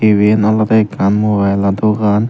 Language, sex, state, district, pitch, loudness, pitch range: Chakma, male, Tripura, Dhalai, 105 Hz, -13 LUFS, 100-110 Hz